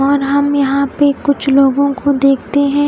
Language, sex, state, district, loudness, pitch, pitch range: Hindi, female, Odisha, Khordha, -13 LUFS, 280 Hz, 275-285 Hz